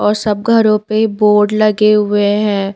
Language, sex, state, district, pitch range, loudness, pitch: Hindi, female, Himachal Pradesh, Shimla, 205-215 Hz, -12 LUFS, 210 Hz